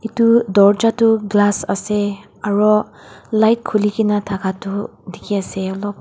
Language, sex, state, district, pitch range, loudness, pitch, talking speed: Nagamese, female, Nagaland, Dimapur, 200-220 Hz, -17 LUFS, 205 Hz, 150 wpm